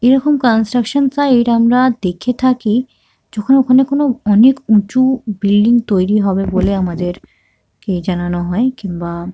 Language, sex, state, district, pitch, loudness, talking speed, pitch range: Bengali, female, West Bengal, Kolkata, 225 Hz, -14 LUFS, 130 wpm, 195-255 Hz